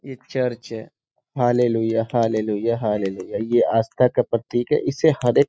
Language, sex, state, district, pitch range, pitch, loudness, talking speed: Hindi, male, Bihar, Sitamarhi, 115-125 Hz, 120 Hz, -21 LUFS, 155 wpm